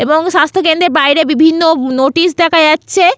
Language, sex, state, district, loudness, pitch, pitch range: Bengali, female, West Bengal, Paschim Medinipur, -10 LUFS, 320 Hz, 305-350 Hz